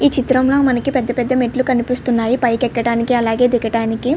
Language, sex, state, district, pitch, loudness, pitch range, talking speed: Telugu, female, Andhra Pradesh, Srikakulam, 250 Hz, -16 LUFS, 235-260 Hz, 185 wpm